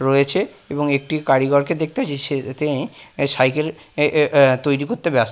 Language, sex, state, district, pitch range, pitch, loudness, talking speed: Bengali, male, West Bengal, Purulia, 135-155 Hz, 140 Hz, -19 LUFS, 170 wpm